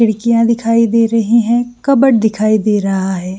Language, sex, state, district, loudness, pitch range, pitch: Hindi, female, Jharkhand, Sahebganj, -13 LUFS, 215-235 Hz, 230 Hz